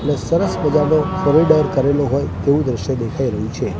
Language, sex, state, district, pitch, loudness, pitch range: Gujarati, male, Gujarat, Gandhinagar, 140 Hz, -17 LUFS, 130-150 Hz